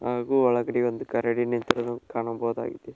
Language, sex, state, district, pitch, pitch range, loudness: Kannada, male, Karnataka, Koppal, 120 Hz, 115-120 Hz, -26 LUFS